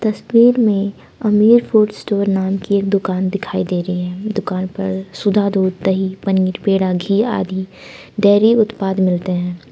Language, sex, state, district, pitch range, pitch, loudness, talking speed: Hindi, female, Jharkhand, Palamu, 185-210 Hz, 195 Hz, -16 LUFS, 155 wpm